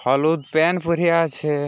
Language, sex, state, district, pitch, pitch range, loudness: Bengali, male, West Bengal, Purulia, 160 Hz, 145-170 Hz, -19 LUFS